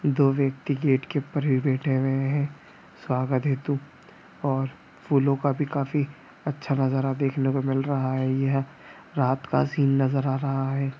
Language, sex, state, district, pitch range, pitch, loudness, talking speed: Hindi, male, Bihar, East Champaran, 135-140 Hz, 135 Hz, -25 LUFS, 175 wpm